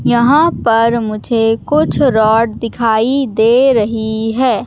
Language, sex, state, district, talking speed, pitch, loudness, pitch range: Hindi, female, Madhya Pradesh, Katni, 115 wpm, 230 Hz, -13 LUFS, 225-250 Hz